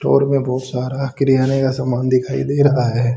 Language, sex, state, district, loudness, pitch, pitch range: Hindi, male, Haryana, Charkhi Dadri, -17 LUFS, 130 Hz, 125-135 Hz